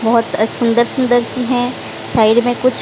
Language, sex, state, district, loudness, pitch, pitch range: Hindi, female, Odisha, Sambalpur, -15 LUFS, 245 Hz, 230-250 Hz